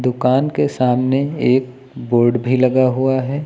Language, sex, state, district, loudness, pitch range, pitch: Hindi, male, Uttar Pradesh, Lucknow, -16 LUFS, 125-130 Hz, 130 Hz